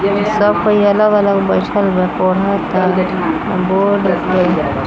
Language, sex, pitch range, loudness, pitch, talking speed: Bhojpuri, female, 185-205 Hz, -14 LUFS, 195 Hz, 85 wpm